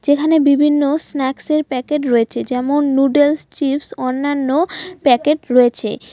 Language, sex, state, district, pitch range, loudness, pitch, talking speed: Bengali, female, West Bengal, Alipurduar, 260-300 Hz, -16 LUFS, 285 Hz, 115 wpm